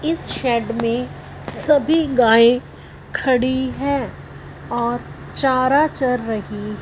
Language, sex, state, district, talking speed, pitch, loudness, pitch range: Hindi, female, Punjab, Fazilka, 95 wpm, 250 Hz, -19 LUFS, 235-280 Hz